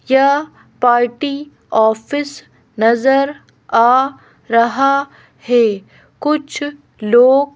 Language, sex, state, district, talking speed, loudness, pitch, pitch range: Hindi, female, Madhya Pradesh, Bhopal, 70 wpm, -15 LUFS, 270 Hz, 235-285 Hz